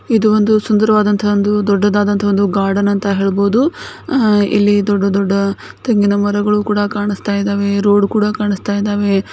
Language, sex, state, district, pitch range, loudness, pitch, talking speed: Kannada, female, Karnataka, Bijapur, 200-210 Hz, -14 LUFS, 205 Hz, 135 wpm